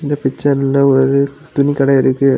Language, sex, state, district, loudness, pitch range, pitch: Tamil, male, Tamil Nadu, Kanyakumari, -14 LUFS, 135-140 Hz, 140 Hz